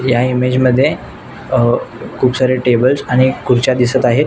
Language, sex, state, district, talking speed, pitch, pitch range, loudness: Marathi, male, Maharashtra, Nagpur, 155 wpm, 130 Hz, 125-130 Hz, -14 LUFS